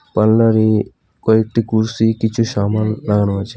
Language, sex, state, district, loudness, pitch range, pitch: Bengali, male, West Bengal, Alipurduar, -16 LUFS, 105-110 Hz, 110 Hz